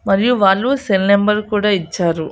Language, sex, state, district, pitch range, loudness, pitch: Telugu, female, Andhra Pradesh, Annamaya, 190-210 Hz, -15 LUFS, 200 Hz